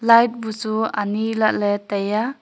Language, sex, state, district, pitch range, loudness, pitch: Wancho, female, Arunachal Pradesh, Longding, 205-225 Hz, -20 LUFS, 220 Hz